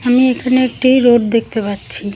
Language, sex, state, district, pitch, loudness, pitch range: Bengali, female, West Bengal, Cooch Behar, 245 Hz, -14 LUFS, 220-255 Hz